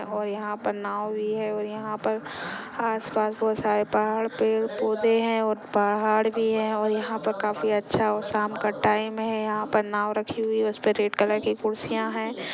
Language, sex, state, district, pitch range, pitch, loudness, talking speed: Hindi, female, Maharashtra, Nagpur, 210-220 Hz, 215 Hz, -26 LUFS, 200 wpm